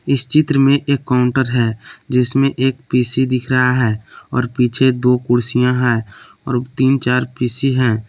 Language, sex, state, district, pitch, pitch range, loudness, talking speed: Hindi, male, Jharkhand, Palamu, 125 Hz, 125-130 Hz, -15 LUFS, 165 wpm